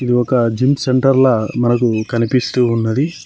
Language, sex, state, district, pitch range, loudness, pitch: Telugu, male, Telangana, Mahabubabad, 115-130 Hz, -15 LUFS, 125 Hz